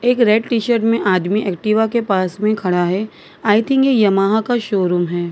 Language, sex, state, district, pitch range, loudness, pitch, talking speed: Hindi, female, Maharashtra, Mumbai Suburban, 190-230 Hz, -16 LUFS, 215 Hz, 205 wpm